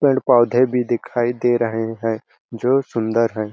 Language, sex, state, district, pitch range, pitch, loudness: Hindi, male, Chhattisgarh, Balrampur, 115-125 Hz, 120 Hz, -19 LUFS